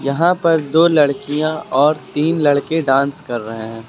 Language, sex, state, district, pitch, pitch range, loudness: Hindi, male, Uttar Pradesh, Lucknow, 145 Hz, 135-160 Hz, -16 LUFS